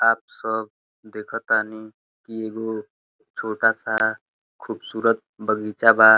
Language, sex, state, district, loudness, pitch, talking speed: Bhojpuri, male, Uttar Pradesh, Deoria, -23 LUFS, 110 Hz, 95 wpm